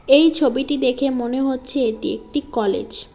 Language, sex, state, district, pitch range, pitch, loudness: Bengali, female, West Bengal, Cooch Behar, 255-285 Hz, 265 Hz, -19 LUFS